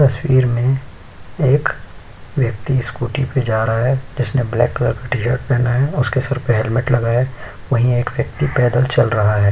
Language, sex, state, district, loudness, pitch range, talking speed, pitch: Hindi, male, Uttar Pradesh, Jyotiba Phule Nagar, -17 LUFS, 115-130 Hz, 190 wpm, 125 Hz